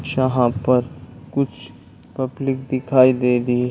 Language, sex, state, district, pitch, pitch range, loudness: Hindi, male, Chhattisgarh, Bilaspur, 130 Hz, 125-130 Hz, -19 LUFS